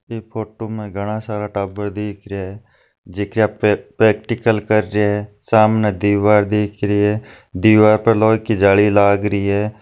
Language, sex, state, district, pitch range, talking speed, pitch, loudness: Marwari, male, Rajasthan, Nagaur, 100-110 Hz, 185 wpm, 105 Hz, -17 LUFS